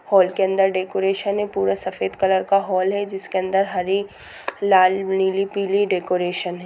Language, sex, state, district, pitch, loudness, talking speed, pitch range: Hindi, female, Bihar, Gopalganj, 190 Hz, -20 LUFS, 170 wpm, 185-195 Hz